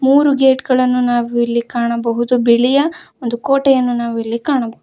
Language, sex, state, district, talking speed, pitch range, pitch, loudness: Kannada, female, Karnataka, Koppal, 135 wpm, 235-270 Hz, 245 Hz, -15 LUFS